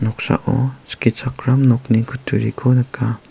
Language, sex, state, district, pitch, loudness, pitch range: Garo, male, Meghalaya, South Garo Hills, 125 Hz, -18 LUFS, 115-130 Hz